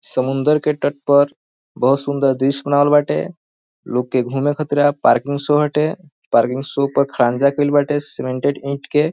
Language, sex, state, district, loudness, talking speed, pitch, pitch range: Bhojpuri, male, Bihar, East Champaran, -17 LUFS, 170 wpm, 140 Hz, 135-145 Hz